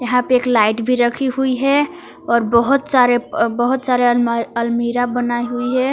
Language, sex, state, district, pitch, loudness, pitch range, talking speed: Hindi, female, Jharkhand, Palamu, 245 Hz, -16 LUFS, 240-255 Hz, 195 wpm